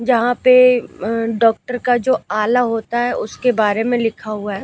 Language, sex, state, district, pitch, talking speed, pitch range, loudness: Hindi, female, Uttar Pradesh, Lucknow, 235 Hz, 195 wpm, 225-245 Hz, -16 LUFS